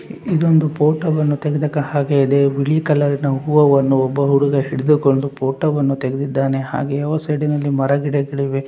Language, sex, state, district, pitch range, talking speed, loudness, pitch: Kannada, male, Karnataka, Raichur, 140-150 Hz, 130 wpm, -17 LUFS, 140 Hz